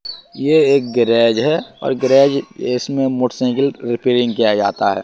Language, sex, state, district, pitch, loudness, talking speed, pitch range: Hindi, male, Bihar, Katihar, 125 Hz, -16 LUFS, 145 wpm, 120-135 Hz